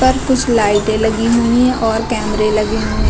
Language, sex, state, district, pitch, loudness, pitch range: Hindi, female, Uttar Pradesh, Lucknow, 225 Hz, -14 LUFS, 215-240 Hz